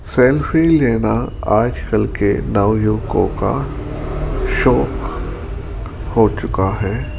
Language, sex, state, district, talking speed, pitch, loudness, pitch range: Hindi, male, Rajasthan, Jaipur, 90 wpm, 105 Hz, -17 LUFS, 95-115 Hz